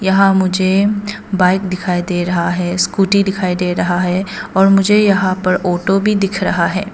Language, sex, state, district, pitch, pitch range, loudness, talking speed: Hindi, female, Arunachal Pradesh, Papum Pare, 190 Hz, 180-195 Hz, -15 LUFS, 180 wpm